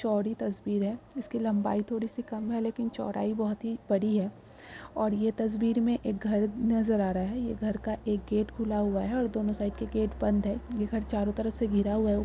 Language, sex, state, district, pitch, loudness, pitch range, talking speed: Hindi, female, Uttar Pradesh, Jyotiba Phule Nagar, 215 Hz, -30 LUFS, 210-230 Hz, 245 wpm